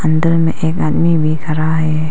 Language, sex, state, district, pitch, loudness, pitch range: Hindi, female, Arunachal Pradesh, Papum Pare, 160 Hz, -15 LUFS, 155-165 Hz